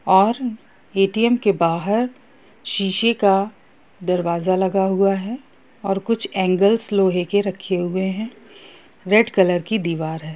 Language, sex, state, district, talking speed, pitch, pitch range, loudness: Hindi, female, Bihar, Gopalganj, 135 wpm, 195 Hz, 185-225 Hz, -20 LUFS